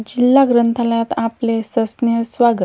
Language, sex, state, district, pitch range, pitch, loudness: Marathi, female, Maharashtra, Washim, 230-240 Hz, 230 Hz, -16 LUFS